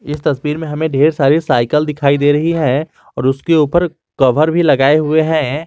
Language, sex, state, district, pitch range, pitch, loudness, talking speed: Hindi, male, Jharkhand, Garhwa, 140-160 Hz, 150 Hz, -14 LUFS, 200 wpm